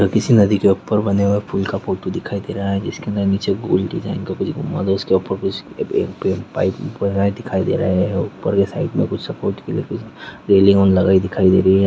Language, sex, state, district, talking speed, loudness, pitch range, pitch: Hindi, male, Chhattisgarh, Rajnandgaon, 230 wpm, -18 LUFS, 95-100 Hz, 100 Hz